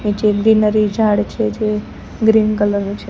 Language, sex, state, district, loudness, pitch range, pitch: Gujarati, female, Gujarat, Gandhinagar, -16 LUFS, 205-215 Hz, 210 Hz